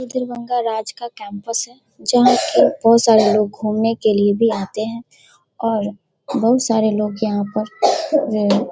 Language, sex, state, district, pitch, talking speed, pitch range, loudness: Hindi, female, Bihar, Darbhanga, 225 Hz, 170 wpm, 210-240 Hz, -17 LUFS